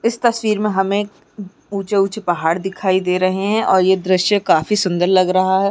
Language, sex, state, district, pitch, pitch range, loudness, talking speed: Hindi, female, Uttarakhand, Uttarkashi, 195 Hz, 185-205 Hz, -17 LUFS, 180 wpm